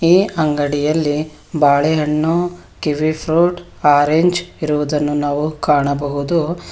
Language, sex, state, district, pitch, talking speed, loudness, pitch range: Kannada, female, Karnataka, Bangalore, 155 Hz, 90 wpm, -17 LUFS, 145-165 Hz